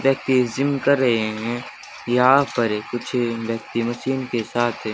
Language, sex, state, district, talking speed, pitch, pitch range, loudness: Hindi, male, Haryana, Charkhi Dadri, 155 wpm, 120 Hz, 115-130 Hz, -21 LUFS